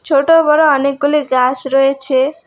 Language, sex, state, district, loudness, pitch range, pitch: Bengali, female, West Bengal, Alipurduar, -13 LUFS, 270-300 Hz, 280 Hz